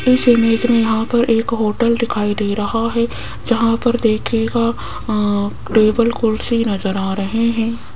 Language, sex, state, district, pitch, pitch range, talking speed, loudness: Hindi, female, Rajasthan, Jaipur, 230 Hz, 215-235 Hz, 160 wpm, -17 LUFS